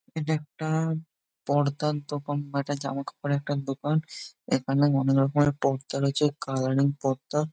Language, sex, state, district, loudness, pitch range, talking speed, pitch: Bengali, male, West Bengal, Jhargram, -27 LUFS, 140-150 Hz, 135 wpm, 145 Hz